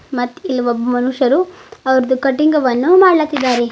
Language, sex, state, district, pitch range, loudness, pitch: Kannada, female, Karnataka, Bidar, 245-305 Hz, -14 LUFS, 260 Hz